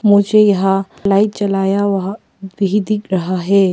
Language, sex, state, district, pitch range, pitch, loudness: Hindi, female, Arunachal Pradesh, Papum Pare, 195-205 Hz, 200 Hz, -15 LUFS